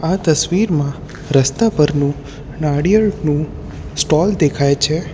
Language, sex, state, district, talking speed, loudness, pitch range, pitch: Gujarati, male, Gujarat, Valsad, 95 wpm, -16 LUFS, 140-160 Hz, 150 Hz